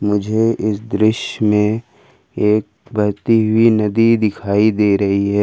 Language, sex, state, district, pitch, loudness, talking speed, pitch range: Hindi, male, Jharkhand, Ranchi, 105 Hz, -16 LUFS, 130 wpm, 105-110 Hz